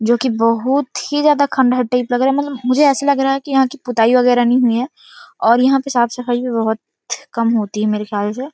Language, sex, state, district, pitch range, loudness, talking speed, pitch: Hindi, female, Chhattisgarh, Rajnandgaon, 230-270 Hz, -16 LUFS, 250 wpm, 250 Hz